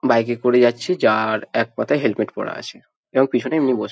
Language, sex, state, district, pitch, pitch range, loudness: Bengali, male, West Bengal, Jhargram, 120 Hz, 115-125 Hz, -19 LUFS